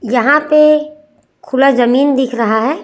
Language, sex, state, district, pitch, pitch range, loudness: Hindi, female, Chhattisgarh, Raipur, 275 Hz, 245-300 Hz, -12 LUFS